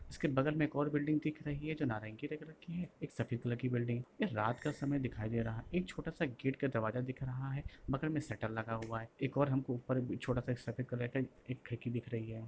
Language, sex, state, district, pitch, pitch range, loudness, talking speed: Hindi, male, Bihar, Lakhisarai, 130 Hz, 115-145 Hz, -39 LUFS, 275 wpm